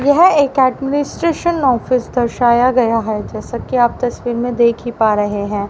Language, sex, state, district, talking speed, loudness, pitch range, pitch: Hindi, female, Haryana, Rohtak, 180 wpm, -15 LUFS, 235-270 Hz, 245 Hz